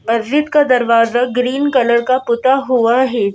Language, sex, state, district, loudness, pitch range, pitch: Hindi, female, Madhya Pradesh, Bhopal, -14 LUFS, 235-260 Hz, 250 Hz